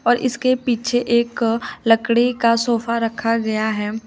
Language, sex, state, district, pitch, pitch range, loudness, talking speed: Hindi, female, Uttar Pradesh, Shamli, 230 Hz, 225-240 Hz, -19 LUFS, 145 wpm